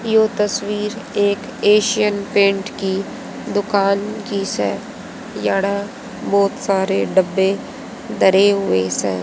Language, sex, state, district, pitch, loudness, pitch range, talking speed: Hindi, female, Haryana, Jhajjar, 200 Hz, -18 LUFS, 195-210 Hz, 105 wpm